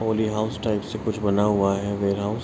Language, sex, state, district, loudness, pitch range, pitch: Hindi, male, Bihar, Araria, -24 LUFS, 100-110 Hz, 105 Hz